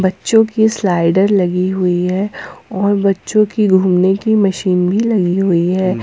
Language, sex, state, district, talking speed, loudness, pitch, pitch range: Hindi, female, Jharkhand, Ranchi, 160 wpm, -14 LUFS, 190 Hz, 185-210 Hz